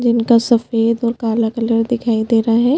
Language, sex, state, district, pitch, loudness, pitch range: Hindi, female, Chhattisgarh, Bastar, 230 Hz, -16 LUFS, 230-235 Hz